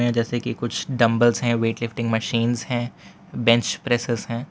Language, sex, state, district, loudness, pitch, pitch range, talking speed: Hindi, male, Gujarat, Valsad, -22 LUFS, 120 Hz, 115-120 Hz, 160 wpm